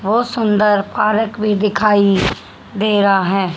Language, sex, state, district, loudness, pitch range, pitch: Hindi, female, Haryana, Charkhi Dadri, -15 LUFS, 200-215 Hz, 210 Hz